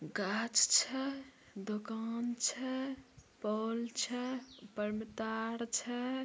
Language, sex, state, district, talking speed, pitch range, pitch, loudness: Hindi, female, Bihar, Samastipur, 95 wpm, 220-260 Hz, 235 Hz, -36 LUFS